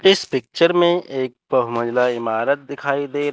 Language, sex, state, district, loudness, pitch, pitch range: Hindi, male, Chandigarh, Chandigarh, -19 LUFS, 140 Hz, 125-145 Hz